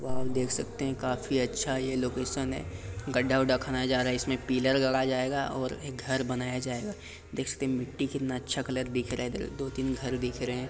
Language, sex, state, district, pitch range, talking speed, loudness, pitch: Hindi, male, Bihar, Jamui, 125-130 Hz, 160 wpm, -31 LUFS, 130 Hz